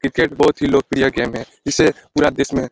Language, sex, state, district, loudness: Hindi, male, Bihar, Lakhisarai, -17 LUFS